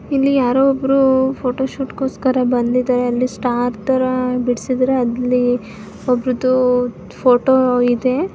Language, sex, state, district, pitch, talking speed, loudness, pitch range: Kannada, female, Karnataka, Mysore, 255 Hz, 95 wpm, -17 LUFS, 245-265 Hz